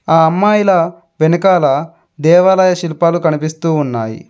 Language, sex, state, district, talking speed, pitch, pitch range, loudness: Telugu, male, Telangana, Mahabubabad, 100 wpm, 165 Hz, 160-180 Hz, -13 LUFS